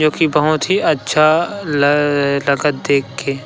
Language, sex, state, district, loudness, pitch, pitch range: Chhattisgarhi, male, Chhattisgarh, Rajnandgaon, -15 LUFS, 150 Hz, 140-155 Hz